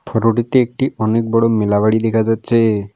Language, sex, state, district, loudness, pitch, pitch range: Bengali, male, West Bengal, Alipurduar, -15 LUFS, 115 Hz, 110-115 Hz